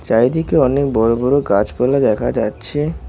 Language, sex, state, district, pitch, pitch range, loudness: Bengali, male, West Bengal, Cooch Behar, 135 Hz, 115-140 Hz, -16 LUFS